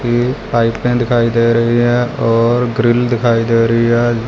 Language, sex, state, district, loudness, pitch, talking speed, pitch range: Hindi, male, Punjab, Fazilka, -13 LUFS, 120 Hz, 170 wpm, 115-120 Hz